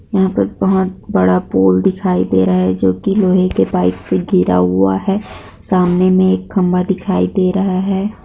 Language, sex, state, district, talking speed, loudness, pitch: Hindi, female, Bihar, Kishanganj, 190 wpm, -14 LUFS, 180 Hz